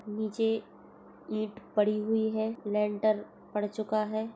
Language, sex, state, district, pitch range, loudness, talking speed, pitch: Hindi, female, Chhattisgarh, Jashpur, 210-220 Hz, -31 LUFS, 125 wpm, 215 Hz